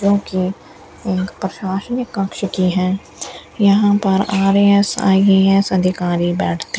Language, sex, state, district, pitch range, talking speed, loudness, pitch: Hindi, female, Rajasthan, Bikaner, 185-200 Hz, 125 wpm, -16 LUFS, 195 Hz